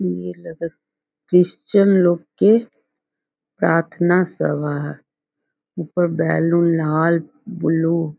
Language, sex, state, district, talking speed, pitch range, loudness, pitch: Hindi, female, Bihar, Muzaffarpur, 80 wpm, 160-175 Hz, -18 LUFS, 165 Hz